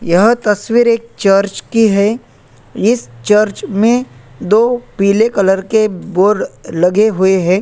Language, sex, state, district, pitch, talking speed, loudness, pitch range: Hindi, male, Chhattisgarh, Korba, 210 Hz, 135 wpm, -13 LUFS, 195-225 Hz